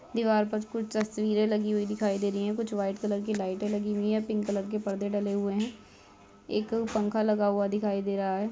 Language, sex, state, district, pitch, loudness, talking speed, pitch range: Hindi, female, Jharkhand, Jamtara, 210 Hz, -29 LUFS, 230 wpm, 200-215 Hz